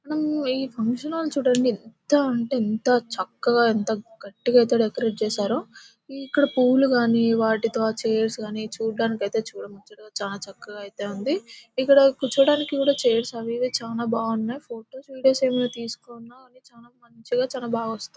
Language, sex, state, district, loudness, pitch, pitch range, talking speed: Telugu, female, Telangana, Nalgonda, -23 LUFS, 235 Hz, 225-260 Hz, 150 wpm